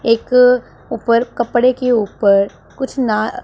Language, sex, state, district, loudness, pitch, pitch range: Hindi, female, Punjab, Pathankot, -15 LUFS, 235 Hz, 225-250 Hz